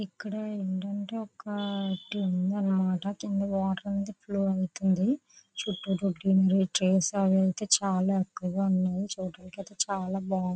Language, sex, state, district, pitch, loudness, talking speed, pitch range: Telugu, female, Andhra Pradesh, Visakhapatnam, 195 Hz, -29 LUFS, 115 wpm, 190-200 Hz